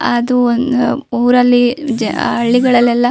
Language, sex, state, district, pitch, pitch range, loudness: Kannada, female, Karnataka, Shimoga, 245 Hz, 240-250 Hz, -13 LUFS